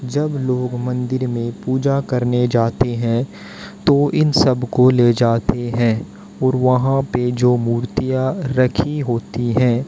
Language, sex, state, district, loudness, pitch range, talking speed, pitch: Hindi, male, Haryana, Jhajjar, -18 LUFS, 120-130 Hz, 140 wpm, 125 Hz